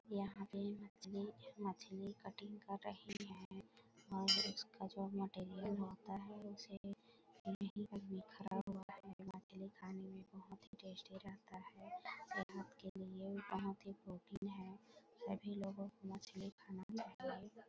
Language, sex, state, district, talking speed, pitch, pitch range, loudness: Hindi, female, Chhattisgarh, Bilaspur, 140 wpm, 195 Hz, 190-205 Hz, -48 LUFS